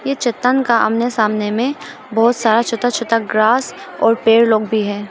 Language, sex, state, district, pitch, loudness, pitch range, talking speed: Hindi, female, Arunachal Pradesh, Papum Pare, 230 Hz, -15 LUFS, 220-245 Hz, 190 wpm